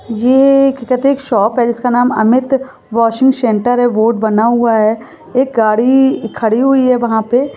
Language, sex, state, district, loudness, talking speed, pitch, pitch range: Hindi, female, Jharkhand, Sahebganj, -12 LUFS, 165 wpm, 245 Hz, 225-265 Hz